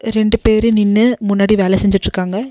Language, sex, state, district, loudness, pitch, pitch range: Tamil, female, Tamil Nadu, Nilgiris, -14 LUFS, 215 Hz, 200-225 Hz